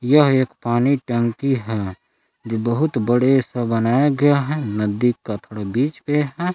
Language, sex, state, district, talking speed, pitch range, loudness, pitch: Hindi, male, Jharkhand, Palamu, 165 wpm, 115-145 Hz, -19 LUFS, 125 Hz